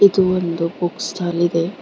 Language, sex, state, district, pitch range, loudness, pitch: Kannada, female, Karnataka, Bidar, 170-190 Hz, -19 LUFS, 175 Hz